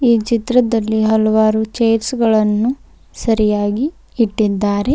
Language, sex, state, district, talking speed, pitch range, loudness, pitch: Kannada, female, Karnataka, Bidar, 85 wpm, 215-235 Hz, -16 LUFS, 220 Hz